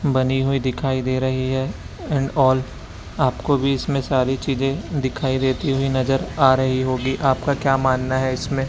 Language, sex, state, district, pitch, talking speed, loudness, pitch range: Hindi, male, Chhattisgarh, Raipur, 130 Hz, 175 wpm, -20 LUFS, 130-135 Hz